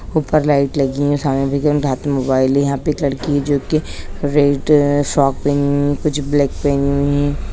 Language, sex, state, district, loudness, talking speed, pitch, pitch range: Hindi, male, Bihar, East Champaran, -16 LUFS, 190 wpm, 145 Hz, 140-145 Hz